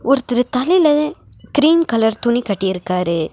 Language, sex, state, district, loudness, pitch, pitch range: Tamil, female, Tamil Nadu, Nilgiris, -16 LUFS, 240 Hz, 200-295 Hz